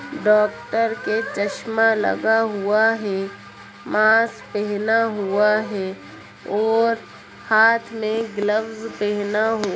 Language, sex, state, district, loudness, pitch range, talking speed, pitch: Hindi, female, Bihar, Samastipur, -20 LUFS, 200-225 Hz, 105 wpm, 215 Hz